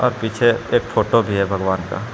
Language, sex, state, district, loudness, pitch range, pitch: Hindi, male, Jharkhand, Palamu, -19 LUFS, 100-115 Hz, 110 Hz